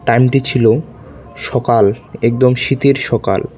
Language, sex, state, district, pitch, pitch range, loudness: Bengali, male, West Bengal, Cooch Behar, 125 Hz, 115-135 Hz, -14 LUFS